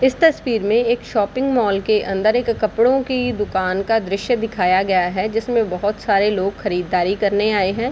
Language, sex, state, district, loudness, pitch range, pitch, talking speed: Hindi, female, Bihar, Darbhanga, -18 LUFS, 195-235 Hz, 215 Hz, 190 wpm